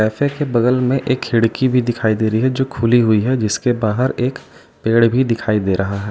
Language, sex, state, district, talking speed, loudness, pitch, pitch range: Hindi, male, Uttar Pradesh, Lalitpur, 215 wpm, -17 LUFS, 120 Hz, 110-130 Hz